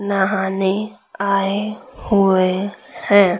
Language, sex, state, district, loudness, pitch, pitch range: Hindi, female, Chhattisgarh, Raipur, -18 LUFS, 200 Hz, 190-205 Hz